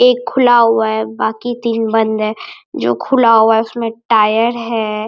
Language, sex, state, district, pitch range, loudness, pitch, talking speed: Hindi, male, Bihar, Araria, 215-235 Hz, -14 LUFS, 225 Hz, 175 wpm